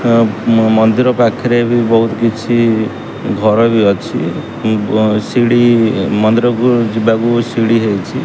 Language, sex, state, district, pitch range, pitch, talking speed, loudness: Odia, male, Odisha, Khordha, 110-120 Hz, 115 Hz, 85 wpm, -12 LUFS